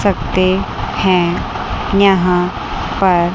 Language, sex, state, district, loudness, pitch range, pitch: Hindi, female, Chandigarh, Chandigarh, -15 LUFS, 180-195 Hz, 185 Hz